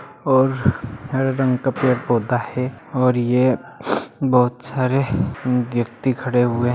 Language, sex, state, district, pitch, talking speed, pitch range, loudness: Hindi, male, Bihar, Bhagalpur, 125 Hz, 125 wpm, 120-130 Hz, -20 LUFS